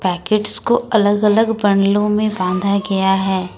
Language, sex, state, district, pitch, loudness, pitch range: Hindi, female, Jharkhand, Ranchi, 205 Hz, -16 LUFS, 195-215 Hz